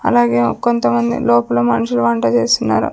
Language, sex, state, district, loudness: Telugu, female, Andhra Pradesh, Sri Satya Sai, -15 LUFS